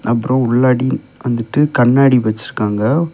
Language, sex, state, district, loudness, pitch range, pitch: Tamil, male, Tamil Nadu, Kanyakumari, -15 LUFS, 115-135 Hz, 125 Hz